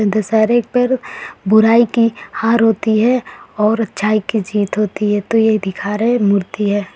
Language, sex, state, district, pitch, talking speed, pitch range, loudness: Hindi, female, Uttar Pradesh, Varanasi, 215 Hz, 170 wpm, 205-230 Hz, -15 LUFS